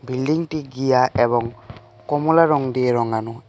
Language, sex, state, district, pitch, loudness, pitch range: Bengali, male, Tripura, West Tripura, 125 Hz, -19 LUFS, 120-145 Hz